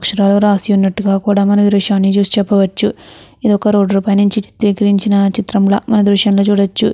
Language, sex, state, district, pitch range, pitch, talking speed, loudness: Telugu, female, Andhra Pradesh, Chittoor, 200-205 Hz, 200 Hz, 175 wpm, -13 LUFS